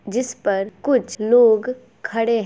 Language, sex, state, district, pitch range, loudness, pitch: Hindi, female, Bihar, Gopalganj, 215-250 Hz, -19 LUFS, 230 Hz